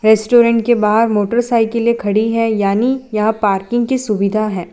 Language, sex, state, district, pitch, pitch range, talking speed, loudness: Hindi, female, Gujarat, Valsad, 220 Hz, 210-235 Hz, 165 wpm, -15 LUFS